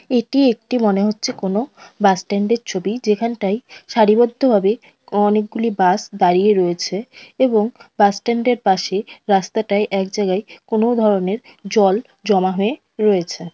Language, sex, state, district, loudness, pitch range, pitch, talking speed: Bengali, female, West Bengal, North 24 Parganas, -18 LUFS, 195-235 Hz, 210 Hz, 130 wpm